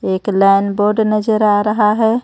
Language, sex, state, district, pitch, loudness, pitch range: Hindi, female, Jharkhand, Ranchi, 210 Hz, -14 LUFS, 200-215 Hz